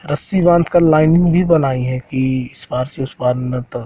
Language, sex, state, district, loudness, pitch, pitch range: Hindi, male, Madhya Pradesh, Katni, -16 LUFS, 135 Hz, 125-170 Hz